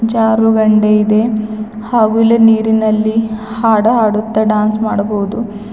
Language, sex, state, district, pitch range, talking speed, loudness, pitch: Kannada, female, Karnataka, Bidar, 215-225 Hz, 85 wpm, -12 LUFS, 220 Hz